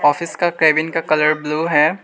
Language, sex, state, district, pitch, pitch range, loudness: Hindi, male, Arunachal Pradesh, Lower Dibang Valley, 155 Hz, 150-165 Hz, -17 LUFS